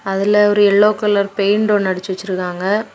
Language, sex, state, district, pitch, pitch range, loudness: Tamil, female, Tamil Nadu, Kanyakumari, 200 Hz, 190-210 Hz, -15 LUFS